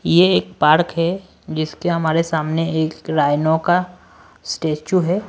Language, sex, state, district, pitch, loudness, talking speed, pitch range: Hindi, male, Delhi, New Delhi, 165 Hz, -18 LUFS, 135 wpm, 155-175 Hz